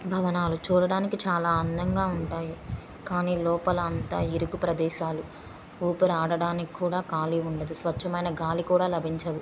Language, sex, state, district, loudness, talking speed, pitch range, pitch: Telugu, female, Andhra Pradesh, Srikakulam, -28 LUFS, 120 wpm, 165-180 Hz, 170 Hz